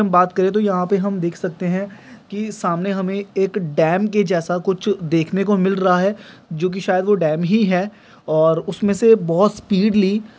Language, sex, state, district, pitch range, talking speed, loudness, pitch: Hindi, male, Andhra Pradesh, Guntur, 180-205 Hz, 200 wpm, -18 LUFS, 195 Hz